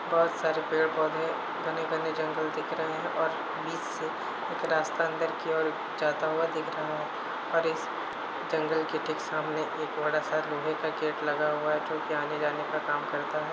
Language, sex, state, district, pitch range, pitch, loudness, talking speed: Hindi, male, Uttar Pradesh, Hamirpur, 155-160 Hz, 155 Hz, -30 LUFS, 190 wpm